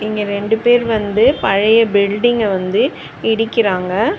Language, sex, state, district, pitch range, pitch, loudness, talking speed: Tamil, female, Tamil Nadu, Chennai, 200-225 Hz, 215 Hz, -15 LUFS, 115 wpm